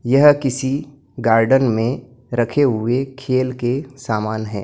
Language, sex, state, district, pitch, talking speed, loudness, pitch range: Hindi, male, Maharashtra, Gondia, 130 Hz, 130 wpm, -18 LUFS, 115-135 Hz